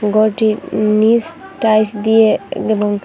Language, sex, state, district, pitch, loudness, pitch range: Bengali, female, Assam, Hailakandi, 215 Hz, -14 LUFS, 215-225 Hz